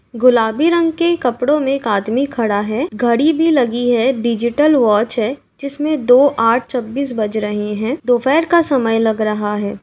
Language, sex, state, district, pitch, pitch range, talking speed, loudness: Hindi, female, Uttar Pradesh, Jalaun, 245 Hz, 220-280 Hz, 175 wpm, -15 LUFS